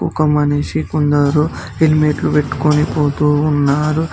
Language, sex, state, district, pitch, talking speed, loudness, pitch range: Telugu, male, Telangana, Mahabubabad, 150 Hz, 100 wpm, -15 LUFS, 145-150 Hz